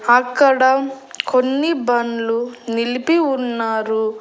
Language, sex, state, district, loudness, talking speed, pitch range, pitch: Telugu, female, Andhra Pradesh, Annamaya, -18 LUFS, 70 wpm, 230-265 Hz, 245 Hz